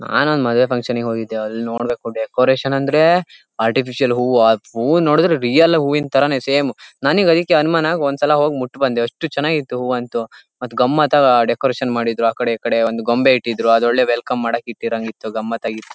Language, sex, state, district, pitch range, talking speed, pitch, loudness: Kannada, male, Karnataka, Shimoga, 115-145 Hz, 170 wpm, 125 Hz, -17 LUFS